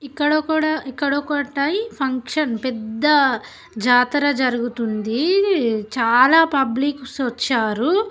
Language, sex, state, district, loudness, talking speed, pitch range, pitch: Telugu, female, Telangana, Nalgonda, -19 LUFS, 75 wpm, 245-300 Hz, 270 Hz